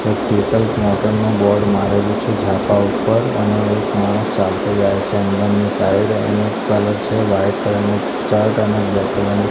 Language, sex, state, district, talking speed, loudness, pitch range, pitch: Gujarati, male, Gujarat, Gandhinagar, 55 wpm, -16 LUFS, 100-105 Hz, 105 Hz